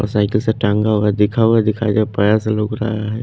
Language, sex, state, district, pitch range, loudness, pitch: Hindi, male, Haryana, Charkhi Dadri, 105-110 Hz, -16 LUFS, 105 Hz